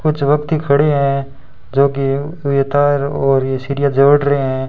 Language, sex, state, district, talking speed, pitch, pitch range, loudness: Hindi, male, Rajasthan, Bikaner, 180 wpm, 140 Hz, 135-145 Hz, -15 LUFS